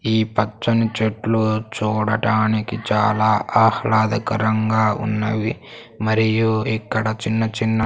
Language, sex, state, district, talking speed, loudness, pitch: Telugu, male, Andhra Pradesh, Sri Satya Sai, 85 wpm, -19 LUFS, 110 Hz